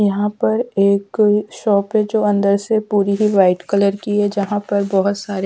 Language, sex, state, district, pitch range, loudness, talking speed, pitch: Hindi, female, Punjab, Pathankot, 200-210 Hz, -17 LUFS, 195 wpm, 205 Hz